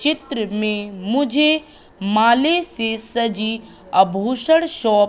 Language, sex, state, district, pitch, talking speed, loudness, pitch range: Hindi, female, Madhya Pradesh, Katni, 230 Hz, 105 wpm, -19 LUFS, 215-295 Hz